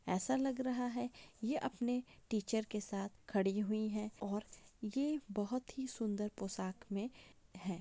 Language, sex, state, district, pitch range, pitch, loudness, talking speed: Hindi, female, Jharkhand, Jamtara, 205-250 Hz, 215 Hz, -40 LUFS, 155 wpm